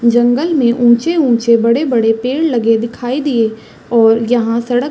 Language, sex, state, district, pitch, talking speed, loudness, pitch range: Hindi, female, Chhattisgarh, Raigarh, 240 Hz, 135 wpm, -13 LUFS, 230-255 Hz